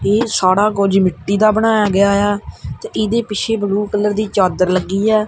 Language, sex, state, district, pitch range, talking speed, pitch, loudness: Punjabi, male, Punjab, Kapurthala, 195-215 Hz, 205 wpm, 205 Hz, -15 LUFS